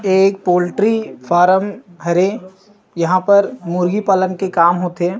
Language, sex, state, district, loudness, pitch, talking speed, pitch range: Chhattisgarhi, male, Chhattisgarh, Rajnandgaon, -15 LUFS, 185 Hz, 115 wpm, 180-200 Hz